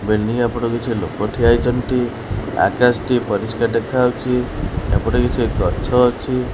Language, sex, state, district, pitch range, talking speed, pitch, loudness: Odia, male, Odisha, Khordha, 110-125 Hz, 100 wpm, 120 Hz, -18 LUFS